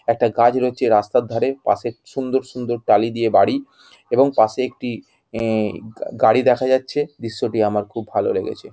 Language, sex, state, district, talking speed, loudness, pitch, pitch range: Bengali, female, West Bengal, Jhargram, 165 wpm, -19 LUFS, 120 Hz, 115-130 Hz